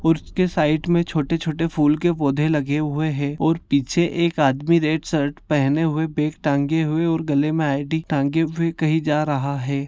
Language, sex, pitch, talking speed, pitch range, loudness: Konkani, male, 155 Hz, 195 wpm, 145-165 Hz, -21 LUFS